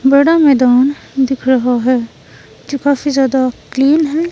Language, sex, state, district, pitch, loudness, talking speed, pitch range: Hindi, female, Himachal Pradesh, Shimla, 270 Hz, -13 LUFS, 140 wpm, 255-285 Hz